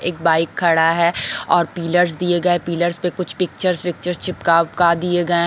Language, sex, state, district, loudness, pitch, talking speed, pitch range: Hindi, female, Bihar, Patna, -18 LUFS, 175 Hz, 220 wpm, 170-180 Hz